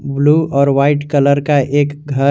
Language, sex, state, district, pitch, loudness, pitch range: Hindi, male, Jharkhand, Garhwa, 140 Hz, -14 LUFS, 140-145 Hz